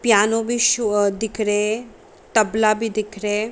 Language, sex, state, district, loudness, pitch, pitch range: Hindi, female, Bihar, Sitamarhi, -20 LUFS, 215 Hz, 210-225 Hz